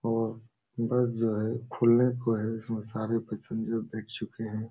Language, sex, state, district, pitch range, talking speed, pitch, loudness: Hindi, male, Uttar Pradesh, Jalaun, 110-115 Hz, 165 wpm, 115 Hz, -30 LUFS